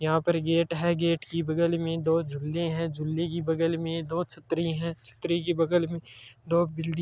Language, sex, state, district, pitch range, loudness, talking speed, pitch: Hindi, male, Rajasthan, Churu, 160-170 Hz, -28 LUFS, 215 wpm, 165 Hz